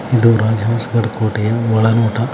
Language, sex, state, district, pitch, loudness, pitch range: Kannada, male, Karnataka, Belgaum, 115 Hz, -15 LUFS, 110-115 Hz